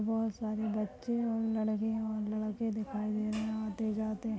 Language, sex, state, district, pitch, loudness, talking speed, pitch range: Hindi, female, Maharashtra, Chandrapur, 220 Hz, -35 LUFS, 180 wpm, 215-220 Hz